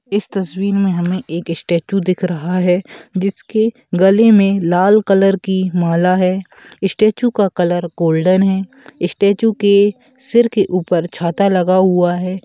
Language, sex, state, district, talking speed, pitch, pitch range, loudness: Bhojpuri, male, Uttar Pradesh, Gorakhpur, 150 wpm, 190 Hz, 180-200 Hz, -15 LUFS